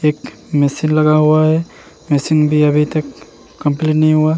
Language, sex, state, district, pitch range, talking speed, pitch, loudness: Hindi, male, Uttarakhand, Tehri Garhwal, 145-155 Hz, 165 wpm, 155 Hz, -14 LUFS